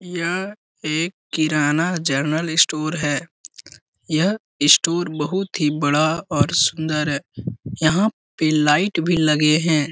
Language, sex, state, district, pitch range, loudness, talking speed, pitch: Hindi, male, Bihar, Lakhisarai, 150-170 Hz, -19 LUFS, 120 wpm, 155 Hz